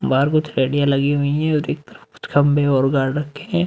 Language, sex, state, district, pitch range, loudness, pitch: Hindi, male, Uttar Pradesh, Muzaffarnagar, 140-150 Hz, -18 LUFS, 145 Hz